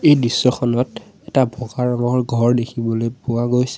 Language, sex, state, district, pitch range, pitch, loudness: Assamese, male, Assam, Sonitpur, 120-125 Hz, 120 Hz, -19 LUFS